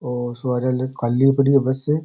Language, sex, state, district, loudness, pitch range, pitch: Rajasthani, male, Rajasthan, Churu, -20 LUFS, 125-140 Hz, 130 Hz